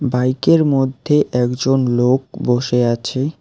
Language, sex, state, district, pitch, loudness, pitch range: Bengali, male, West Bengal, Alipurduar, 130 Hz, -16 LUFS, 125-135 Hz